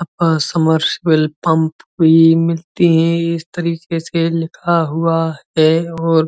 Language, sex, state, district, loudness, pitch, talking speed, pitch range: Hindi, male, Uttar Pradesh, Muzaffarnagar, -15 LUFS, 165 Hz, 135 wpm, 160-170 Hz